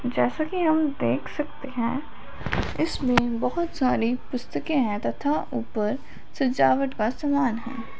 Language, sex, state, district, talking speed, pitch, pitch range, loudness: Hindi, female, Punjab, Fazilka, 125 wpm, 255 Hz, 230-290 Hz, -26 LUFS